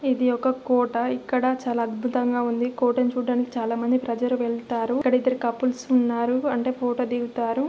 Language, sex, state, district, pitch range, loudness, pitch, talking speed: Telugu, female, Telangana, Nalgonda, 240-255 Hz, -24 LUFS, 245 Hz, 165 wpm